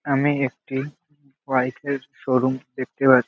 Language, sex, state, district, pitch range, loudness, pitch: Bengali, male, West Bengal, Malda, 130-140 Hz, -23 LUFS, 135 Hz